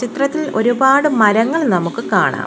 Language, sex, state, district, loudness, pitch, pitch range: Malayalam, female, Kerala, Kollam, -15 LUFS, 235 Hz, 210-275 Hz